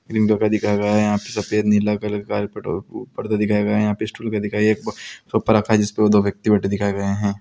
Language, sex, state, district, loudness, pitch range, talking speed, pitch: Hindi, male, Bihar, Araria, -20 LUFS, 105-110 Hz, 310 wpm, 105 Hz